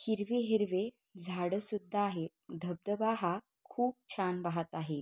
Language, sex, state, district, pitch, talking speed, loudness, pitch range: Marathi, female, Maharashtra, Sindhudurg, 200 Hz, 130 wpm, -36 LUFS, 175-220 Hz